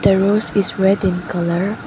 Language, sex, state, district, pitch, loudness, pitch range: English, female, Arunachal Pradesh, Lower Dibang Valley, 190 Hz, -17 LUFS, 180-200 Hz